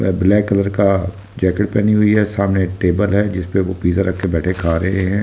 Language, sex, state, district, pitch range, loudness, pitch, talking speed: Hindi, male, Delhi, New Delhi, 95-100 Hz, -16 LUFS, 95 Hz, 265 wpm